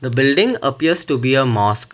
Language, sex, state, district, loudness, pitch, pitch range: English, male, Karnataka, Bangalore, -16 LUFS, 135 Hz, 130-140 Hz